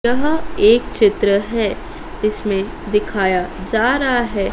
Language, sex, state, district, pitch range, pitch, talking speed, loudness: Hindi, female, Madhya Pradesh, Dhar, 205-310 Hz, 225 Hz, 120 wpm, -17 LUFS